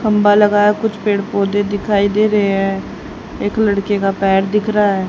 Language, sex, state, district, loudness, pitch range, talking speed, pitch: Hindi, female, Haryana, Rohtak, -15 LUFS, 200-210 Hz, 190 wpm, 205 Hz